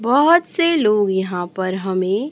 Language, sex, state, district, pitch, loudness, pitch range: Hindi, male, Chhattisgarh, Raipur, 200 Hz, -17 LUFS, 190-295 Hz